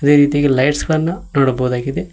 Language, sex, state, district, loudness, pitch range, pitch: Kannada, male, Karnataka, Koppal, -16 LUFS, 130-145 Hz, 140 Hz